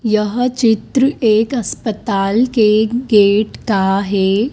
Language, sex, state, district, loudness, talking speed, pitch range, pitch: Hindi, female, Madhya Pradesh, Dhar, -15 LUFS, 105 wpm, 205-240 Hz, 220 Hz